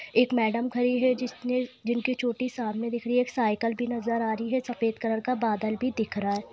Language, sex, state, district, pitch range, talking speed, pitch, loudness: Hindi, female, Jharkhand, Sahebganj, 225-250 Hz, 230 wpm, 240 Hz, -28 LUFS